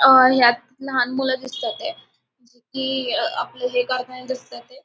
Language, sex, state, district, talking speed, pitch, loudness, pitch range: Marathi, female, Maharashtra, Sindhudurg, 150 wpm, 260 Hz, -21 LUFS, 250-270 Hz